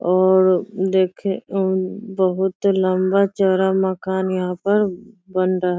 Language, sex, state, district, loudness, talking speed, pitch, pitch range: Hindi, female, Bihar, Sitamarhi, -19 LUFS, 125 wpm, 190 Hz, 185-195 Hz